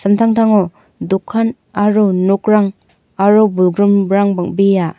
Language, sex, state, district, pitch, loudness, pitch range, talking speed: Garo, female, Meghalaya, North Garo Hills, 200 Hz, -13 LUFS, 190-210 Hz, 85 wpm